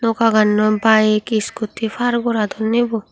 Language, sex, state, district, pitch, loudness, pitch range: Chakma, female, Tripura, Unakoti, 220 Hz, -17 LUFS, 215-230 Hz